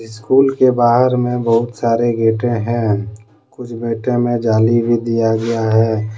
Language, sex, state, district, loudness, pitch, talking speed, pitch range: Hindi, male, Jharkhand, Deoghar, -15 LUFS, 115 Hz, 155 wpm, 110-120 Hz